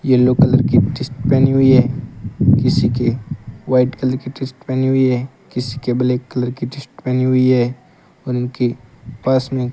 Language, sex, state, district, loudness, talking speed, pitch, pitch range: Hindi, male, Rajasthan, Bikaner, -17 LUFS, 185 wpm, 125 Hz, 125-130 Hz